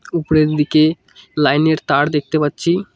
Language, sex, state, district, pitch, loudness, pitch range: Bengali, male, West Bengal, Cooch Behar, 155 Hz, -16 LUFS, 150-160 Hz